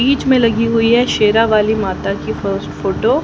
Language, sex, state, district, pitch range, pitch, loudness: Hindi, female, Haryana, Charkhi Dadri, 215-245 Hz, 230 Hz, -15 LUFS